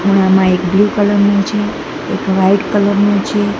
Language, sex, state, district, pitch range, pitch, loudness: Gujarati, female, Gujarat, Gandhinagar, 190-205 Hz, 200 Hz, -13 LUFS